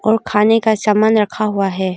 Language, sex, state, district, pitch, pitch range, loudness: Hindi, female, Arunachal Pradesh, Longding, 215 Hz, 205-220 Hz, -15 LUFS